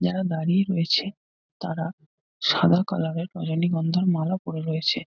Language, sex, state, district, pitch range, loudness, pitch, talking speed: Bengali, male, West Bengal, North 24 Parganas, 160-180 Hz, -24 LUFS, 165 Hz, 130 wpm